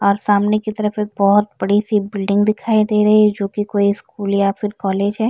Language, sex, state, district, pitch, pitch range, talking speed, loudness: Hindi, female, Uttar Pradesh, Varanasi, 205 Hz, 200-210 Hz, 225 wpm, -17 LUFS